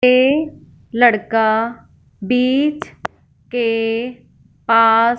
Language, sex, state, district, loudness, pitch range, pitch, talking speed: Hindi, female, Punjab, Fazilka, -16 LUFS, 225-250 Hz, 235 Hz, 60 wpm